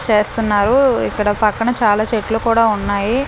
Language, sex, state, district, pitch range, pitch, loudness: Telugu, male, Andhra Pradesh, Manyam, 210-230 Hz, 220 Hz, -16 LUFS